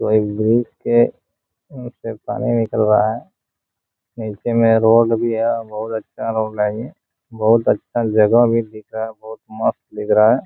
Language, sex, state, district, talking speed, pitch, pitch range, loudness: Hindi, male, Jharkhand, Jamtara, 170 wpm, 110 Hz, 110-115 Hz, -18 LUFS